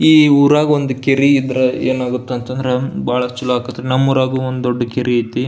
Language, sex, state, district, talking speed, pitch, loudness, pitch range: Kannada, male, Karnataka, Belgaum, 185 wpm, 130 Hz, -15 LUFS, 125-135 Hz